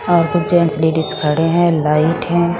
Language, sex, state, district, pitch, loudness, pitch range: Hindi, female, Haryana, Rohtak, 165 Hz, -15 LUFS, 160-175 Hz